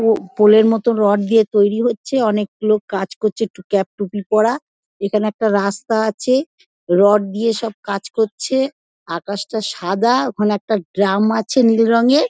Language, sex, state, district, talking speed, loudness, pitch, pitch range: Bengali, female, West Bengal, Dakshin Dinajpur, 155 wpm, -17 LUFS, 215 Hz, 200-230 Hz